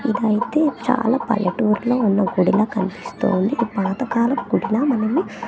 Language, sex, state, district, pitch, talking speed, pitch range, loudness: Telugu, female, Andhra Pradesh, Manyam, 225 Hz, 110 wpm, 200-250 Hz, -20 LUFS